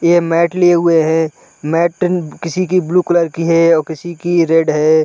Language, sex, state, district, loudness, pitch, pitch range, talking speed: Hindi, male, Uttar Pradesh, Deoria, -14 LUFS, 170 Hz, 160-175 Hz, 200 wpm